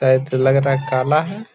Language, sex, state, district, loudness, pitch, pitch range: Hindi, male, Bihar, Gaya, -17 LUFS, 135 Hz, 130-150 Hz